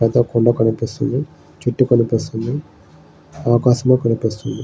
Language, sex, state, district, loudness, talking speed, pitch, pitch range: Telugu, male, Andhra Pradesh, Srikakulam, -18 LUFS, 90 wpm, 120 Hz, 115-135 Hz